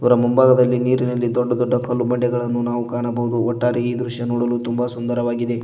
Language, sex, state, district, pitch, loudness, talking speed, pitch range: Kannada, male, Karnataka, Koppal, 120 Hz, -19 LUFS, 160 wpm, 120-125 Hz